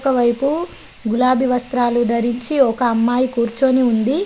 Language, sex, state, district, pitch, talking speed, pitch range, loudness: Telugu, female, Telangana, Adilabad, 250 Hz, 115 wpm, 235-265 Hz, -16 LUFS